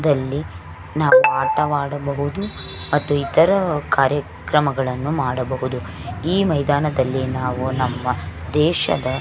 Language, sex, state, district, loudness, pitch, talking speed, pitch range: Kannada, female, Karnataka, Belgaum, -20 LUFS, 140 Hz, 85 wpm, 130-150 Hz